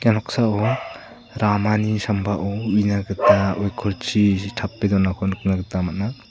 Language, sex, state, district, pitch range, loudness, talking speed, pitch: Garo, male, Meghalaya, South Garo Hills, 100-110 Hz, -21 LUFS, 115 wpm, 105 Hz